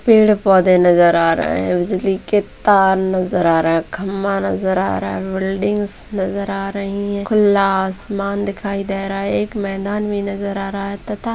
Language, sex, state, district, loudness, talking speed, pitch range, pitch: Hindi, female, Bihar, Madhepura, -17 LUFS, 190 wpm, 190-200 Hz, 195 Hz